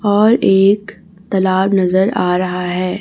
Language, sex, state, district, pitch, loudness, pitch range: Hindi, female, Chhattisgarh, Raipur, 190 Hz, -14 LUFS, 185-200 Hz